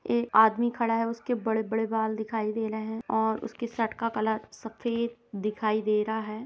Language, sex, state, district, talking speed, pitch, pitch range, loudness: Hindi, female, Uttar Pradesh, Jalaun, 215 wpm, 220 Hz, 220-230 Hz, -28 LUFS